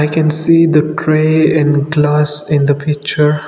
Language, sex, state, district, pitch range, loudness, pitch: English, male, Nagaland, Dimapur, 150-155 Hz, -12 LUFS, 150 Hz